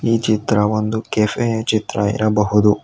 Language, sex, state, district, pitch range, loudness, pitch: Kannada, male, Karnataka, Bangalore, 105-110 Hz, -18 LUFS, 110 Hz